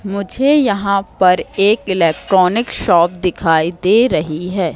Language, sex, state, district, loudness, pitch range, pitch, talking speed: Hindi, female, Madhya Pradesh, Katni, -14 LUFS, 175-205 Hz, 190 Hz, 125 wpm